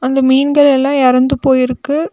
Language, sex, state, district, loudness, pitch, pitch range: Tamil, female, Tamil Nadu, Nilgiris, -12 LUFS, 270 Hz, 255-285 Hz